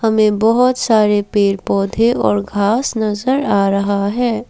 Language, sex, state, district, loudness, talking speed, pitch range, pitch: Hindi, female, Assam, Kamrup Metropolitan, -15 LUFS, 145 wpm, 200-235 Hz, 215 Hz